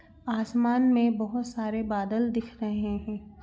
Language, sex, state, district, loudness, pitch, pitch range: Hindi, female, Bihar, Saran, -28 LUFS, 225 Hz, 215-240 Hz